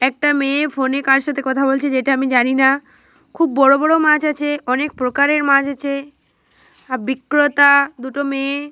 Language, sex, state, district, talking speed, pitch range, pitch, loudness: Bengali, female, Jharkhand, Jamtara, 165 wpm, 265-290 Hz, 275 Hz, -16 LUFS